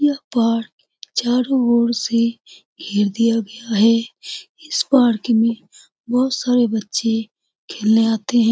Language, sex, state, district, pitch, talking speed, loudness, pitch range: Hindi, female, Bihar, Lakhisarai, 230 Hz, 125 wpm, -18 LUFS, 225-255 Hz